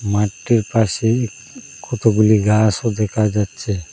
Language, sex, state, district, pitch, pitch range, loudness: Bengali, male, Assam, Hailakandi, 110 Hz, 105-115 Hz, -17 LUFS